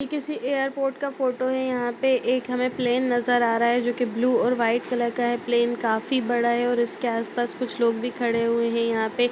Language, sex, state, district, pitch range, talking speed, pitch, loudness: Hindi, female, Bihar, Darbhanga, 235-255 Hz, 250 wpm, 245 Hz, -24 LUFS